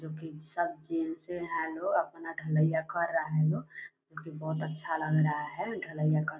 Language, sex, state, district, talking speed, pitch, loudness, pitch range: Hindi, female, Bihar, Purnia, 215 wpm, 160 Hz, -32 LUFS, 155-165 Hz